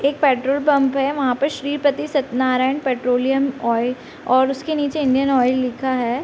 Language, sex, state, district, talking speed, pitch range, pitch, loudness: Hindi, female, Bihar, Sitamarhi, 180 wpm, 255-285 Hz, 270 Hz, -19 LUFS